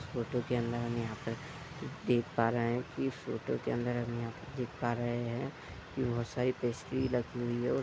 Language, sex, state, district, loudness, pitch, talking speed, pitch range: Hindi, male, Uttar Pradesh, Budaun, -35 LUFS, 120 Hz, 215 wpm, 120-130 Hz